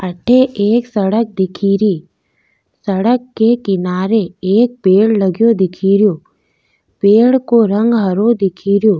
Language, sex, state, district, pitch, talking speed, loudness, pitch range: Rajasthani, female, Rajasthan, Nagaur, 205 Hz, 115 wpm, -13 LUFS, 190-230 Hz